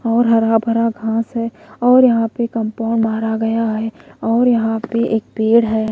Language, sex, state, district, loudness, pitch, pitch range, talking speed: Hindi, female, Odisha, Malkangiri, -16 LUFS, 225 Hz, 225-230 Hz, 180 wpm